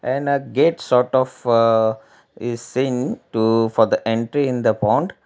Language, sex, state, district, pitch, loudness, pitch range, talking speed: English, male, Gujarat, Valsad, 120 Hz, -19 LUFS, 115-130 Hz, 160 wpm